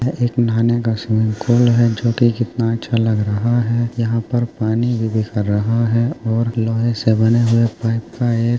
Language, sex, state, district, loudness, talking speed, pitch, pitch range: Hindi, male, Uttar Pradesh, Jyotiba Phule Nagar, -17 LUFS, 190 wpm, 115 Hz, 115-120 Hz